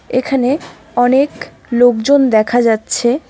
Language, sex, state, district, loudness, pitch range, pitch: Bengali, female, West Bengal, Alipurduar, -14 LUFS, 235-265 Hz, 245 Hz